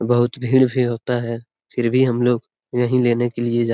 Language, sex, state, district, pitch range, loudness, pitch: Hindi, male, Bihar, Lakhisarai, 120-125 Hz, -19 LUFS, 120 Hz